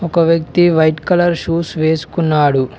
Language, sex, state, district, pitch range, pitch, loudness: Telugu, male, Telangana, Mahabubabad, 155-170 Hz, 165 Hz, -14 LUFS